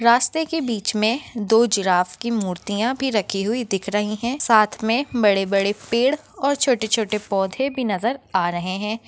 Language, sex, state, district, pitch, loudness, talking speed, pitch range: Hindi, female, Maharashtra, Nagpur, 220 Hz, -21 LUFS, 185 wpm, 200-245 Hz